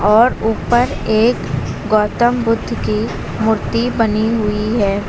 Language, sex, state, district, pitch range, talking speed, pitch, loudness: Hindi, female, Uttar Pradesh, Lucknow, 215-235 Hz, 120 wpm, 220 Hz, -16 LUFS